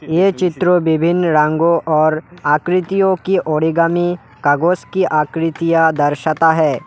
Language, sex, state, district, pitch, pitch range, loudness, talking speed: Hindi, male, West Bengal, Alipurduar, 165 Hz, 155-175 Hz, -15 LUFS, 115 wpm